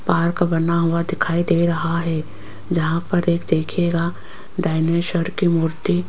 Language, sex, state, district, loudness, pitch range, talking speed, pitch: Hindi, female, Rajasthan, Jaipur, -20 LUFS, 160-170 Hz, 150 wpm, 170 Hz